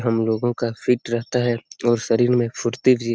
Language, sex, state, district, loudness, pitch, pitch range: Hindi, male, Jharkhand, Sahebganj, -21 LUFS, 120 Hz, 115-125 Hz